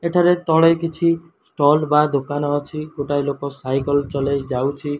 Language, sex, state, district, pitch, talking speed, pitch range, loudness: Odia, male, Odisha, Malkangiri, 145 Hz, 130 wpm, 140-165 Hz, -19 LUFS